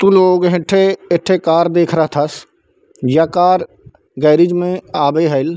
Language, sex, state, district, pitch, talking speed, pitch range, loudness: Chhattisgarhi, male, Chhattisgarh, Bilaspur, 170 Hz, 95 wpm, 160-180 Hz, -14 LUFS